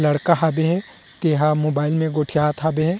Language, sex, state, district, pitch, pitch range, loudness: Chhattisgarhi, male, Chhattisgarh, Rajnandgaon, 155 Hz, 150-160 Hz, -20 LUFS